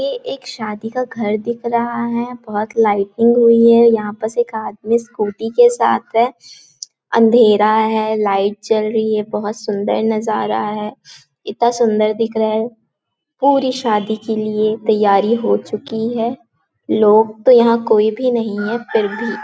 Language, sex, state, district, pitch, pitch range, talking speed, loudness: Hindi, female, Chhattisgarh, Balrampur, 220 Hz, 215-235 Hz, 160 wpm, -16 LUFS